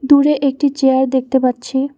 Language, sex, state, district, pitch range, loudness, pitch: Bengali, female, West Bengal, Alipurduar, 265-285 Hz, -15 LUFS, 265 Hz